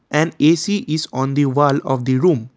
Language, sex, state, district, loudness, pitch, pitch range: English, male, Assam, Kamrup Metropolitan, -17 LUFS, 145 Hz, 135-155 Hz